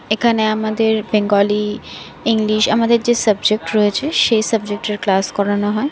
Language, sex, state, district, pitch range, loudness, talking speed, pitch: Bengali, female, West Bengal, North 24 Parganas, 205-225 Hz, -16 LUFS, 140 wpm, 215 Hz